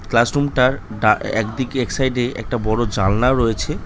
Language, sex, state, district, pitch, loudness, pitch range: Bengali, male, West Bengal, North 24 Parganas, 120 Hz, -19 LUFS, 110-130 Hz